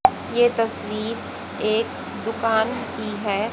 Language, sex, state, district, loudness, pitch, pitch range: Hindi, female, Haryana, Rohtak, -24 LUFS, 225 Hz, 215-230 Hz